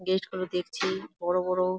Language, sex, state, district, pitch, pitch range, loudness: Bengali, female, West Bengal, Jalpaiguri, 185 Hz, 180-190 Hz, -30 LUFS